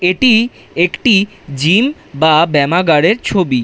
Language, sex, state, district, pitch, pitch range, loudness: Bengali, male, West Bengal, Dakshin Dinajpur, 180 Hz, 155-215 Hz, -12 LUFS